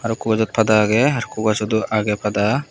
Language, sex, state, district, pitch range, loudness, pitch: Chakma, male, Tripura, West Tripura, 105-115 Hz, -18 LUFS, 110 Hz